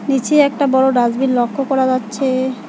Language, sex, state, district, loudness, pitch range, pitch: Bengali, female, West Bengal, Alipurduar, -15 LUFS, 250-275 Hz, 260 Hz